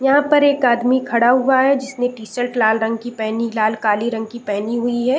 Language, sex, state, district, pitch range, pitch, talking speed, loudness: Hindi, female, Chhattisgarh, Raigarh, 220-260 Hz, 240 Hz, 240 wpm, -17 LUFS